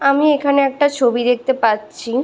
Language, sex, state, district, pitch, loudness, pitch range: Bengali, female, West Bengal, Malda, 265 Hz, -16 LUFS, 240-280 Hz